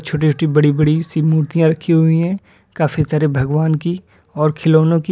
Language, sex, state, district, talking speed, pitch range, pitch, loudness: Hindi, male, Uttar Pradesh, Lalitpur, 185 wpm, 150-165 Hz, 155 Hz, -15 LUFS